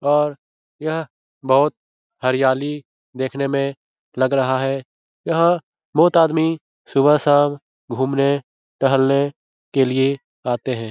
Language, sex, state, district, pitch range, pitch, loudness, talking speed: Hindi, male, Bihar, Jahanabad, 130-150 Hz, 140 Hz, -19 LUFS, 105 wpm